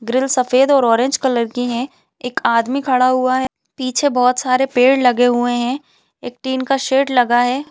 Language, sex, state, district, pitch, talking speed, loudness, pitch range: Hindi, female, Chhattisgarh, Balrampur, 255 Hz, 200 wpm, -16 LUFS, 245-265 Hz